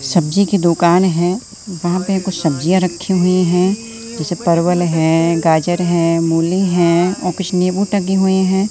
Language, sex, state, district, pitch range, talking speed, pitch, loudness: Hindi, male, Madhya Pradesh, Katni, 170-190 Hz, 165 wpm, 180 Hz, -15 LUFS